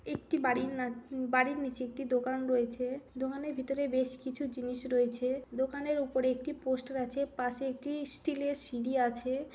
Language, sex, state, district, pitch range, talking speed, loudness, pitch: Bengali, female, West Bengal, Paschim Medinipur, 255-275 Hz, 165 wpm, -34 LUFS, 260 Hz